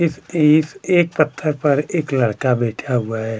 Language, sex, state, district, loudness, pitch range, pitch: Hindi, male, Chhattisgarh, Kabirdham, -18 LUFS, 125-160 Hz, 145 Hz